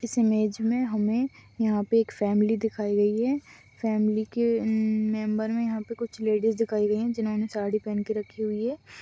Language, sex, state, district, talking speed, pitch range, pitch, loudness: Hindi, female, West Bengal, Dakshin Dinajpur, 200 wpm, 215-230 Hz, 220 Hz, -27 LUFS